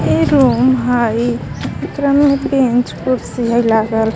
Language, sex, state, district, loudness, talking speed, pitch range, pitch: Magahi, female, Jharkhand, Palamu, -14 LUFS, 145 wpm, 235-265 Hz, 245 Hz